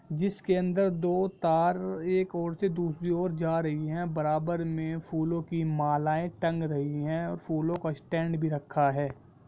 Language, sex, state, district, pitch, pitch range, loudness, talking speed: Hindi, male, Jharkhand, Sahebganj, 165 Hz, 155-175 Hz, -30 LUFS, 165 wpm